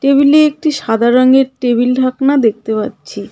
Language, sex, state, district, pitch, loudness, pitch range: Bengali, female, West Bengal, Cooch Behar, 255 Hz, -12 LUFS, 240-280 Hz